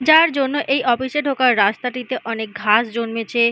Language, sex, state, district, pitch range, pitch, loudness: Bengali, female, West Bengal, Malda, 230-270 Hz, 245 Hz, -18 LUFS